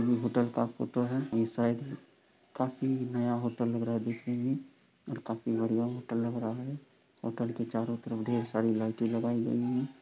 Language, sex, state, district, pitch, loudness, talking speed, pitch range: Hindi, male, Bihar, Sitamarhi, 120 Hz, -33 LUFS, 205 wpm, 115-125 Hz